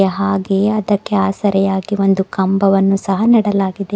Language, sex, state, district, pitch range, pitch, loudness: Kannada, female, Karnataka, Bidar, 195-205 Hz, 195 Hz, -15 LUFS